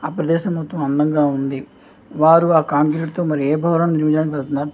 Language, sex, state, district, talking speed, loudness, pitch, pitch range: Telugu, male, Andhra Pradesh, Anantapur, 190 wpm, -17 LUFS, 155 Hz, 145-165 Hz